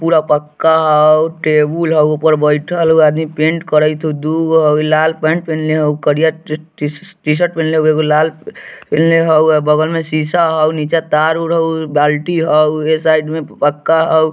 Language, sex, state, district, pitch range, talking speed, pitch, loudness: Bajjika, male, Bihar, Vaishali, 155-160 Hz, 190 wpm, 155 Hz, -13 LUFS